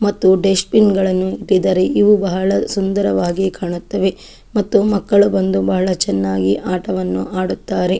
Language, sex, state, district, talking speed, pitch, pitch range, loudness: Kannada, female, Karnataka, Chamarajanagar, 120 wpm, 190 Hz, 175-200 Hz, -16 LUFS